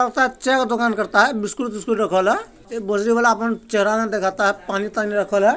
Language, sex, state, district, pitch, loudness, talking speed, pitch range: Maithili, male, Bihar, Supaul, 215 Hz, -19 LUFS, 235 wpm, 205-235 Hz